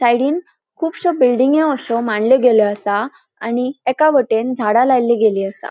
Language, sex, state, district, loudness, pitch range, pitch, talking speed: Konkani, female, Goa, North and South Goa, -16 LUFS, 225-285 Hz, 250 Hz, 145 wpm